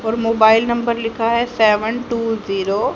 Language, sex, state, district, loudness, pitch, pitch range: Hindi, female, Haryana, Charkhi Dadri, -17 LUFS, 225 Hz, 220-235 Hz